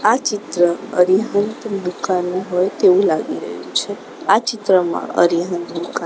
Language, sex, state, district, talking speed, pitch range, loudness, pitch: Gujarati, female, Gujarat, Gandhinagar, 130 wpm, 175-215 Hz, -18 LUFS, 185 Hz